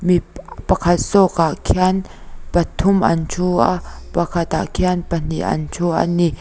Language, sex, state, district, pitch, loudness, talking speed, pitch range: Mizo, female, Mizoram, Aizawl, 175 Hz, -18 LUFS, 160 wpm, 165-180 Hz